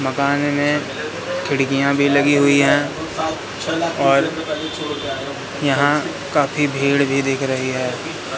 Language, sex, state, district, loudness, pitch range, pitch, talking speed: Hindi, male, Madhya Pradesh, Katni, -19 LUFS, 135-150 Hz, 140 Hz, 105 wpm